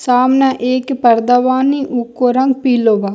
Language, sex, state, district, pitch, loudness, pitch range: Bhojpuri, female, Bihar, East Champaran, 250 Hz, -13 LUFS, 240-265 Hz